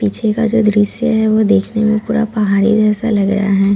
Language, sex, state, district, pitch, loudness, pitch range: Hindi, female, Bihar, Katihar, 215 Hz, -14 LUFS, 200-220 Hz